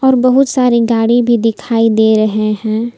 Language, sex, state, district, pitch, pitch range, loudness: Hindi, female, Jharkhand, Palamu, 230 Hz, 220-245 Hz, -12 LUFS